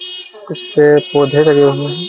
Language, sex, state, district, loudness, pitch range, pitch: Hindi, male, Jharkhand, Jamtara, -11 LUFS, 145-185 Hz, 150 Hz